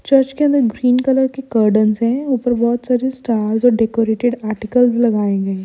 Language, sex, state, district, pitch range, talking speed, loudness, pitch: Hindi, female, Bihar, Kishanganj, 220-260 Hz, 190 wpm, -16 LUFS, 240 Hz